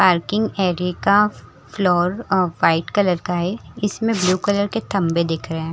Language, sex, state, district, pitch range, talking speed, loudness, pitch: Hindi, female, Chhattisgarh, Rajnandgaon, 175-205 Hz, 170 wpm, -19 LUFS, 185 Hz